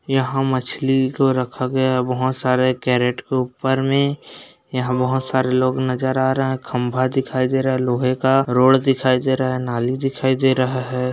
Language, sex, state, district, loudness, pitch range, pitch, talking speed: Hindi, male, Uttarakhand, Uttarkashi, -19 LUFS, 125-130 Hz, 130 Hz, 195 wpm